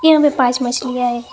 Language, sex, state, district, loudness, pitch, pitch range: Hindi, female, Assam, Hailakandi, -16 LUFS, 250 Hz, 245-285 Hz